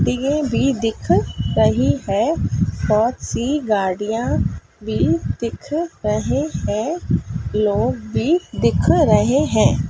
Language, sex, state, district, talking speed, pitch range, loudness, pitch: Hindi, female, Madhya Pradesh, Dhar, 105 wpm, 215-290 Hz, -19 LUFS, 230 Hz